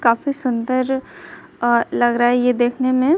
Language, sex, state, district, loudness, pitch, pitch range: Hindi, female, Bihar, Kaimur, -18 LUFS, 250 Hz, 240-260 Hz